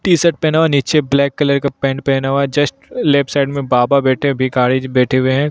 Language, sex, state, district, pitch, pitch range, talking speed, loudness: Hindi, male, Uttarakhand, Tehri Garhwal, 140 Hz, 130-145 Hz, 250 wpm, -15 LUFS